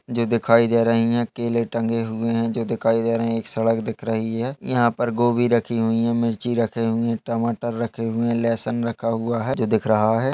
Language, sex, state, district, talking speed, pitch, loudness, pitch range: Hindi, male, Chhattisgarh, Jashpur, 230 wpm, 115 Hz, -21 LUFS, 115-120 Hz